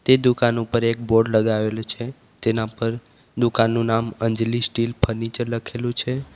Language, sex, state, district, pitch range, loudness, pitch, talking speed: Gujarati, male, Gujarat, Valsad, 115-120 Hz, -22 LUFS, 115 Hz, 160 wpm